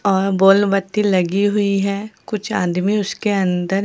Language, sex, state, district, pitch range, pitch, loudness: Hindi, female, Bihar, Katihar, 190-205 Hz, 200 Hz, -18 LUFS